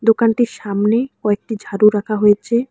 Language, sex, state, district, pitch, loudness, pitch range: Bengali, female, West Bengal, Alipurduar, 215 Hz, -17 LUFS, 210-235 Hz